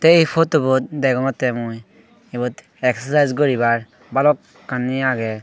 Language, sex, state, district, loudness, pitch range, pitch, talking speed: Chakma, female, Tripura, Dhalai, -19 LUFS, 120-145 Hz, 130 Hz, 100 wpm